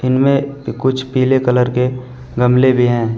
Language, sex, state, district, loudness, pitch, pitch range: Hindi, male, Uttar Pradesh, Shamli, -15 LUFS, 125 Hz, 125-130 Hz